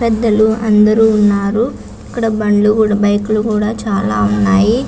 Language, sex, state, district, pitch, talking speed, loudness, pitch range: Telugu, female, Andhra Pradesh, Visakhapatnam, 215 Hz, 135 wpm, -13 LUFS, 205-220 Hz